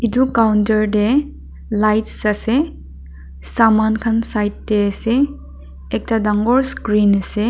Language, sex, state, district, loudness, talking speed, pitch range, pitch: Nagamese, female, Nagaland, Dimapur, -16 LUFS, 110 wpm, 205-230 Hz, 215 Hz